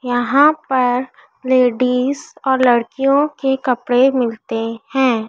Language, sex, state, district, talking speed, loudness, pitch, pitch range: Hindi, female, Madhya Pradesh, Dhar, 100 wpm, -16 LUFS, 255 Hz, 245-270 Hz